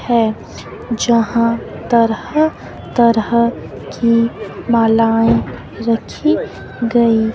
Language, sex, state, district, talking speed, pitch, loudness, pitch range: Hindi, female, Himachal Pradesh, Shimla, 55 wpm, 230 Hz, -15 LUFS, 225-235 Hz